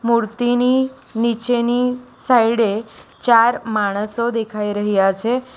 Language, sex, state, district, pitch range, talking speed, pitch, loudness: Gujarati, female, Gujarat, Valsad, 215-245 Hz, 85 wpm, 235 Hz, -18 LUFS